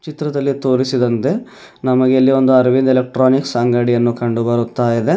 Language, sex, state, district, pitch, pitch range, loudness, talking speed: Kannada, male, Karnataka, Bidar, 130 Hz, 120-135 Hz, -15 LUFS, 130 wpm